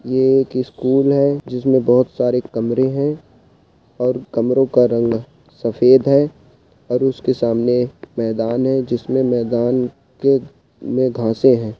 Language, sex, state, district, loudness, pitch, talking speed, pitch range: Hindi, male, Uttarakhand, Uttarkashi, -17 LUFS, 125 Hz, 125 wpm, 120-135 Hz